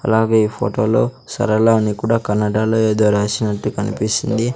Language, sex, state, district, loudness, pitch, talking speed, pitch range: Telugu, male, Andhra Pradesh, Sri Satya Sai, -17 LUFS, 110 Hz, 130 wpm, 105-115 Hz